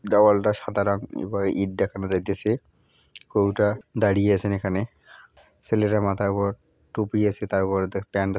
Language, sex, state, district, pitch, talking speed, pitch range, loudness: Bengali, male, West Bengal, Purulia, 100 Hz, 145 wpm, 95-105 Hz, -24 LUFS